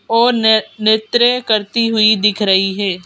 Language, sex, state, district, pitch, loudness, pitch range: Hindi, female, Madhya Pradesh, Bhopal, 215 Hz, -13 LUFS, 205-230 Hz